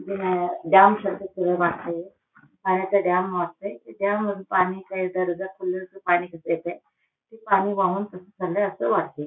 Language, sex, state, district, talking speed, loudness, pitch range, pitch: Marathi, female, Maharashtra, Solapur, 125 wpm, -24 LUFS, 180-195 Hz, 185 Hz